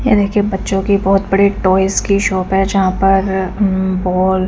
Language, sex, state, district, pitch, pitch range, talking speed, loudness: Hindi, female, Chandigarh, Chandigarh, 195 Hz, 190-200 Hz, 200 wpm, -14 LUFS